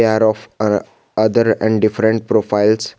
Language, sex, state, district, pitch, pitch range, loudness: English, male, Jharkhand, Garhwa, 110 Hz, 105-110 Hz, -16 LUFS